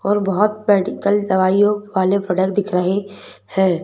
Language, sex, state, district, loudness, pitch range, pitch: Hindi, female, Madhya Pradesh, Bhopal, -18 LUFS, 190-205 Hz, 195 Hz